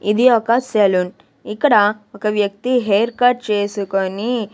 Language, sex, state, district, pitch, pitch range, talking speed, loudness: Telugu, female, Andhra Pradesh, Sri Satya Sai, 210 Hz, 205-240 Hz, 120 wpm, -17 LUFS